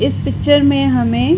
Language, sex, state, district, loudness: Hindi, female, Uttar Pradesh, Varanasi, -14 LUFS